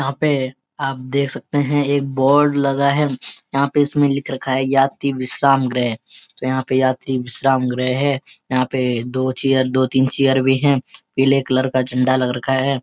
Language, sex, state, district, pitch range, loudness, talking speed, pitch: Hindi, male, Uttarakhand, Uttarkashi, 130-140 Hz, -18 LUFS, 185 wpm, 135 Hz